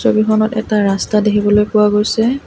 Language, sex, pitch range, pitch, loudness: Assamese, female, 210-215 Hz, 210 Hz, -14 LUFS